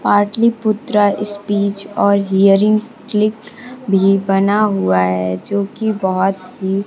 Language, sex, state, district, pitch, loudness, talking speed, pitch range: Hindi, female, Bihar, Kaimur, 200 Hz, -16 LUFS, 105 wpm, 195-215 Hz